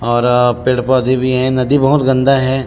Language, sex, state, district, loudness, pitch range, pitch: Chhattisgarhi, male, Chhattisgarh, Rajnandgaon, -13 LUFS, 125-130 Hz, 130 Hz